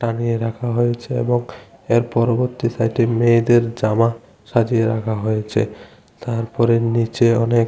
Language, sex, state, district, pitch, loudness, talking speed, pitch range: Bengali, male, Tripura, West Tripura, 115 Hz, -19 LUFS, 115 wpm, 115-120 Hz